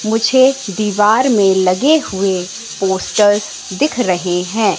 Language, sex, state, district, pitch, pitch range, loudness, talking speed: Hindi, female, Madhya Pradesh, Katni, 205 Hz, 190-235 Hz, -14 LUFS, 115 wpm